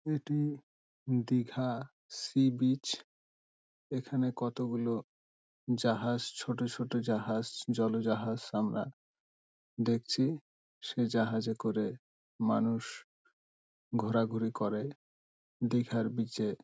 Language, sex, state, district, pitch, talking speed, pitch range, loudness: Bengali, male, West Bengal, Dakshin Dinajpur, 115 Hz, 90 wpm, 110-125 Hz, -34 LUFS